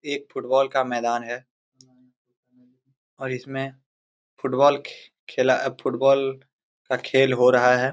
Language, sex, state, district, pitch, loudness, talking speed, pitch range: Hindi, male, Jharkhand, Jamtara, 130 Hz, -22 LUFS, 120 wpm, 125-135 Hz